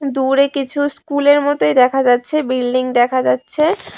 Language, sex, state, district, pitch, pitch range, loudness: Bengali, female, Tripura, West Tripura, 270 Hz, 255-285 Hz, -15 LUFS